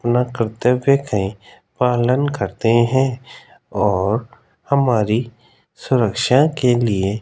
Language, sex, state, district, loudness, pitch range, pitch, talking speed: Hindi, male, Rajasthan, Jaipur, -18 LUFS, 110-130 Hz, 120 Hz, 110 wpm